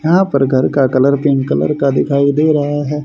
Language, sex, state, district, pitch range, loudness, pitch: Hindi, male, Haryana, Rohtak, 135-150 Hz, -13 LUFS, 140 Hz